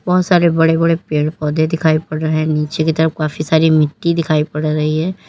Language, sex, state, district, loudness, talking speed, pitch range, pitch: Hindi, female, Uttar Pradesh, Lalitpur, -15 LUFS, 225 wpm, 155-165 Hz, 155 Hz